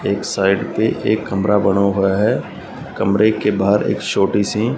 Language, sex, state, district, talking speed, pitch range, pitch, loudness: Hindi, male, Punjab, Fazilka, 175 wpm, 95-105 Hz, 100 Hz, -17 LUFS